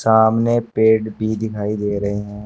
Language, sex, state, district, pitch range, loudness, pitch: Hindi, male, Uttar Pradesh, Shamli, 105-110 Hz, -18 LUFS, 110 Hz